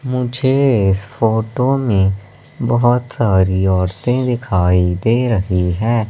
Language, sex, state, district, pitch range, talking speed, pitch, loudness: Hindi, male, Madhya Pradesh, Katni, 95-125 Hz, 110 wpm, 115 Hz, -16 LUFS